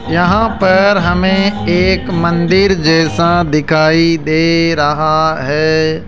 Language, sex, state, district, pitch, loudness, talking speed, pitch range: Hindi, male, Rajasthan, Jaipur, 165 Hz, -12 LUFS, 100 wpm, 155-185 Hz